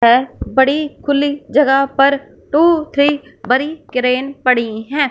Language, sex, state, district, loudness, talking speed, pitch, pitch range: Hindi, female, Punjab, Fazilka, -15 LUFS, 130 wpm, 275 Hz, 255-290 Hz